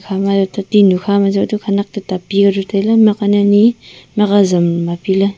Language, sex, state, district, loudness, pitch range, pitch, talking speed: Wancho, female, Arunachal Pradesh, Longding, -13 LUFS, 195-205 Hz, 200 Hz, 245 wpm